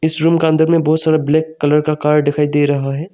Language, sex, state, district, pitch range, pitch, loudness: Hindi, male, Arunachal Pradesh, Longding, 145-160 Hz, 155 Hz, -14 LUFS